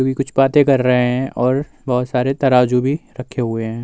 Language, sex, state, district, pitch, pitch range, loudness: Hindi, male, Uttar Pradesh, Muzaffarnagar, 130 Hz, 125-135 Hz, -17 LUFS